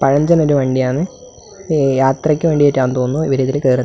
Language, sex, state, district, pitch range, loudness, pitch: Malayalam, male, Kerala, Kasaragod, 130-155 Hz, -15 LUFS, 140 Hz